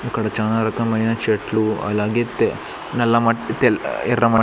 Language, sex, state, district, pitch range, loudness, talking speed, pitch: Telugu, male, Andhra Pradesh, Sri Satya Sai, 110-115 Hz, -20 LUFS, 165 wpm, 115 Hz